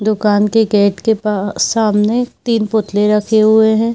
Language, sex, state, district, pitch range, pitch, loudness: Hindi, female, Jharkhand, Jamtara, 210-220 Hz, 215 Hz, -14 LUFS